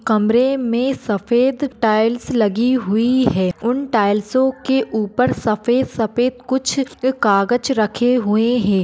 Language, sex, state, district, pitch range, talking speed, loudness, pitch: Hindi, female, Maharashtra, Pune, 215-255 Hz, 115 wpm, -17 LUFS, 240 Hz